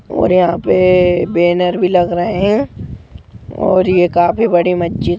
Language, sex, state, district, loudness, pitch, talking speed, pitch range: Hindi, female, Jharkhand, Jamtara, -13 LUFS, 180 Hz, 150 wpm, 175-185 Hz